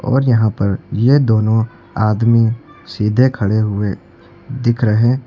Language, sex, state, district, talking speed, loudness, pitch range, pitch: Hindi, male, Uttar Pradesh, Lucknow, 125 wpm, -15 LUFS, 105-125 Hz, 115 Hz